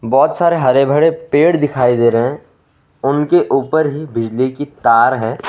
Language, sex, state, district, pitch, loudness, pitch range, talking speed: Hindi, male, Assam, Sonitpur, 140 Hz, -14 LUFS, 125-155 Hz, 175 wpm